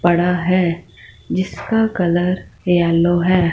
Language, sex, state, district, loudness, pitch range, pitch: Hindi, female, Punjab, Fazilka, -17 LUFS, 175-185 Hz, 175 Hz